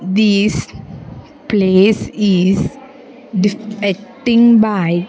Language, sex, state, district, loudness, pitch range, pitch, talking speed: English, female, Andhra Pradesh, Sri Satya Sai, -14 LUFS, 185-230 Hz, 205 Hz, 70 wpm